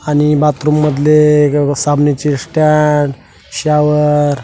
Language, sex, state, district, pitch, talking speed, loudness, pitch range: Marathi, male, Maharashtra, Washim, 150 Hz, 95 wpm, -12 LUFS, 145-150 Hz